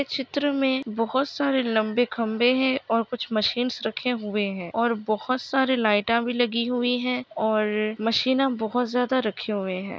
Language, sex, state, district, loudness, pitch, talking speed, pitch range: Hindi, female, Bihar, Kishanganj, -24 LUFS, 240 Hz, 175 wpm, 220-260 Hz